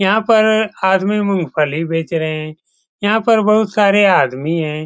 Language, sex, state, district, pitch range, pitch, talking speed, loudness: Hindi, male, Bihar, Saran, 160-215 Hz, 190 Hz, 160 wpm, -15 LUFS